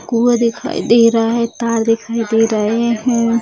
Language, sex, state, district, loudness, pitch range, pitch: Hindi, female, Bihar, Sitamarhi, -15 LUFS, 225-235 Hz, 230 Hz